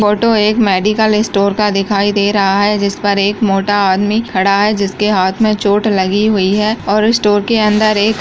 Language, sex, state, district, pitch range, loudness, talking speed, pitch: Hindi, female, Uttar Pradesh, Jyotiba Phule Nagar, 200-215 Hz, -12 LUFS, 210 wpm, 205 Hz